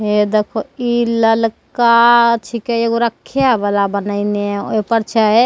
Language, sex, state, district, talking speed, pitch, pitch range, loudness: Maithili, female, Bihar, Begusarai, 130 wpm, 225 Hz, 210-235 Hz, -15 LUFS